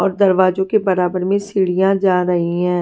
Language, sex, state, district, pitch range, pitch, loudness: Hindi, female, Bihar, West Champaran, 180-195 Hz, 185 Hz, -16 LUFS